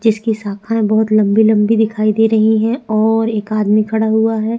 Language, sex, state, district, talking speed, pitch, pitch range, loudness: Hindi, female, Chhattisgarh, Sukma, 210 wpm, 220 Hz, 215-225 Hz, -14 LUFS